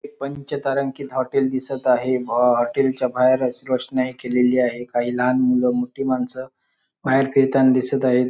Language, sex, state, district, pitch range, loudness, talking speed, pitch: Marathi, male, Maharashtra, Sindhudurg, 125-135 Hz, -20 LUFS, 145 wpm, 130 Hz